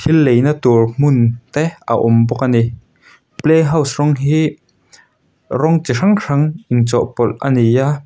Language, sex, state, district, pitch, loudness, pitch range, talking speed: Mizo, male, Mizoram, Aizawl, 140 Hz, -14 LUFS, 120-155 Hz, 150 wpm